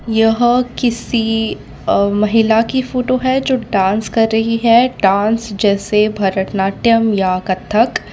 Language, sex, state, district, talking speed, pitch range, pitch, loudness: Hindi, female, Gujarat, Valsad, 125 wpm, 205-235 Hz, 225 Hz, -15 LUFS